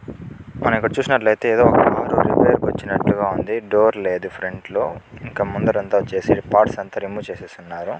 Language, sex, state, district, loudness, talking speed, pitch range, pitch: Telugu, male, Andhra Pradesh, Chittoor, -19 LUFS, 115 wpm, 110-130 Hz, 110 Hz